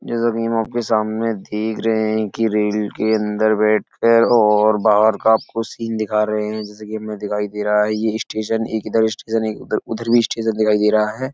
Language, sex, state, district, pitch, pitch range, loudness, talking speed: Hindi, male, Uttar Pradesh, Etah, 110 Hz, 105-115 Hz, -18 LUFS, 230 wpm